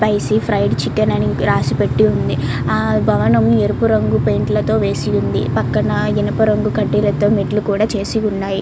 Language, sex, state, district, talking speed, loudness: Telugu, female, Andhra Pradesh, Chittoor, 160 wpm, -16 LUFS